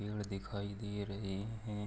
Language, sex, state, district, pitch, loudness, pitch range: Hindi, male, Jharkhand, Sahebganj, 100 Hz, -41 LUFS, 100-105 Hz